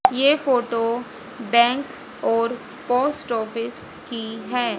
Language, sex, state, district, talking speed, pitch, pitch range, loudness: Hindi, female, Haryana, Rohtak, 100 wpm, 240 Hz, 230-255 Hz, -22 LUFS